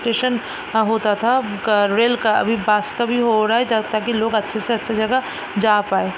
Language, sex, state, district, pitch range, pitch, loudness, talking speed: Hindi, female, Bihar, Sitamarhi, 215-235 Hz, 220 Hz, -18 LUFS, 205 wpm